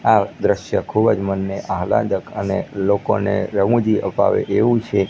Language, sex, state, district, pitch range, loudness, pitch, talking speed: Gujarati, male, Gujarat, Gandhinagar, 95-110 Hz, -19 LUFS, 100 Hz, 130 wpm